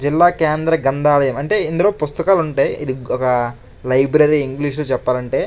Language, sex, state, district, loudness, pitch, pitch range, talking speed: Telugu, male, Andhra Pradesh, Chittoor, -17 LUFS, 145 Hz, 130-160 Hz, 145 wpm